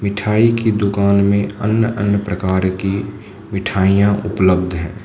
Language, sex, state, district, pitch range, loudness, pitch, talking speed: Hindi, male, Manipur, Imphal West, 95-105 Hz, -16 LUFS, 100 Hz, 130 wpm